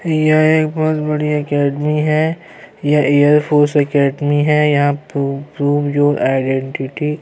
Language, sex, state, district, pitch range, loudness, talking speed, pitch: Urdu, male, Bihar, Saharsa, 145-150 Hz, -15 LUFS, 140 wpm, 150 Hz